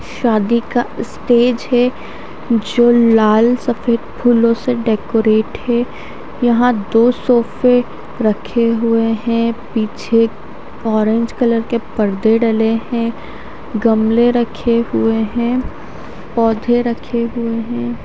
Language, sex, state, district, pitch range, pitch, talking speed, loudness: Hindi, female, Haryana, Charkhi Dadri, 225-240 Hz, 230 Hz, 105 wpm, -15 LUFS